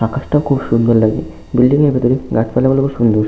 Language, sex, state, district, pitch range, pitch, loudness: Bengali, male, West Bengal, Malda, 110-135 Hz, 125 Hz, -14 LUFS